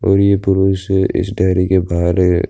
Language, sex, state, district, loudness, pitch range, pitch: Hindi, male, Uttar Pradesh, Budaun, -15 LUFS, 90-95 Hz, 95 Hz